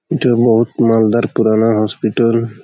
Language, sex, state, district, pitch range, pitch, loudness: Bengali, male, West Bengal, Malda, 110-120 Hz, 115 Hz, -14 LUFS